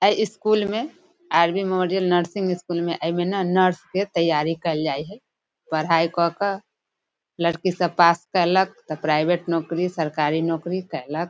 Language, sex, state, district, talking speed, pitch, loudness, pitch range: Maithili, female, Bihar, Darbhanga, 150 wpm, 175 Hz, -22 LUFS, 165-190 Hz